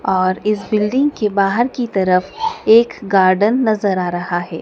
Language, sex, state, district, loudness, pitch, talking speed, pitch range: Hindi, female, Madhya Pradesh, Dhar, -16 LUFS, 205 Hz, 170 wpm, 185-230 Hz